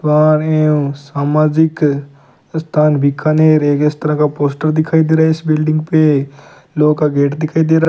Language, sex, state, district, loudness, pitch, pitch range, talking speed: Hindi, male, Rajasthan, Bikaner, -14 LUFS, 150 Hz, 145-155 Hz, 185 wpm